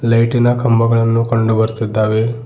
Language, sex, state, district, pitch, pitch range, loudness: Kannada, male, Karnataka, Bidar, 115 Hz, 110-115 Hz, -14 LUFS